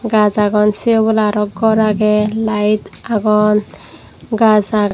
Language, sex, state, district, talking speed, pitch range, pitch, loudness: Chakma, female, Tripura, Dhalai, 135 wpm, 210-220 Hz, 215 Hz, -14 LUFS